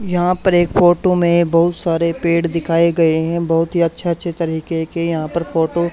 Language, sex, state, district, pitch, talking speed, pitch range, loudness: Hindi, male, Haryana, Charkhi Dadri, 170 Hz, 200 wpm, 165-175 Hz, -16 LUFS